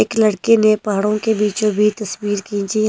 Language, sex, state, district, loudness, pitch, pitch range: Hindi, female, Himachal Pradesh, Shimla, -17 LUFS, 210 Hz, 205-215 Hz